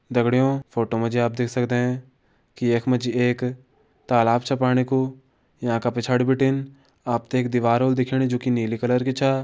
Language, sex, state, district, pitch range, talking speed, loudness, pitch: Hindi, male, Uttarakhand, Tehri Garhwal, 120-130 Hz, 185 wpm, -22 LUFS, 125 Hz